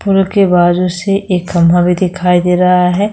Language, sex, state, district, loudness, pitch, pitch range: Hindi, female, Chhattisgarh, Korba, -11 LUFS, 180 Hz, 175-195 Hz